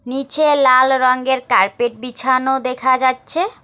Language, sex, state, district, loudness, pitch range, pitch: Bengali, female, West Bengal, Alipurduar, -16 LUFS, 255-265 Hz, 260 Hz